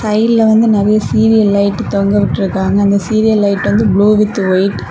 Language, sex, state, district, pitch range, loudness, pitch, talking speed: Tamil, female, Tamil Nadu, Kanyakumari, 200-220 Hz, -12 LUFS, 205 Hz, 170 wpm